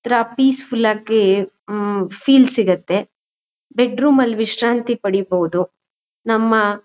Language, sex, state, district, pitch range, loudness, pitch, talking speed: Kannada, female, Karnataka, Mysore, 195-240 Hz, -17 LUFS, 220 Hz, 115 wpm